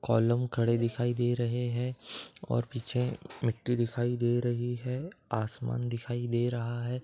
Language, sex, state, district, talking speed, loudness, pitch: Hindi, male, Uttar Pradesh, Etah, 155 wpm, -32 LUFS, 120 Hz